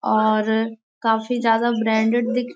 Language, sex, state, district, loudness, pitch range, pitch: Hindi, female, Bihar, Gaya, -20 LUFS, 220-240 Hz, 225 Hz